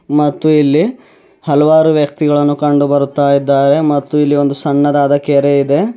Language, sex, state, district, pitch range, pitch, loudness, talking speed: Kannada, male, Karnataka, Bidar, 140-150 Hz, 145 Hz, -12 LUFS, 130 wpm